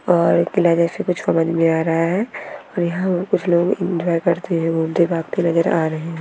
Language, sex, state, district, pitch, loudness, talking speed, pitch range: Hindi, female, Goa, North and South Goa, 170 Hz, -19 LUFS, 205 wpm, 165-180 Hz